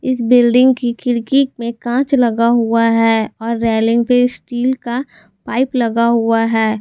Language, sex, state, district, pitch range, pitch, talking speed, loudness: Hindi, female, Jharkhand, Garhwa, 230-250 Hz, 235 Hz, 160 wpm, -15 LUFS